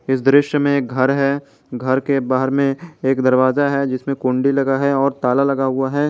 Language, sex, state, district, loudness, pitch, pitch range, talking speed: Hindi, male, Jharkhand, Garhwa, -17 LUFS, 135 Hz, 130-140 Hz, 215 wpm